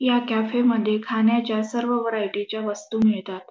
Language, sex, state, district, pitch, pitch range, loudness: Marathi, female, Maharashtra, Dhule, 220 Hz, 215-235 Hz, -23 LUFS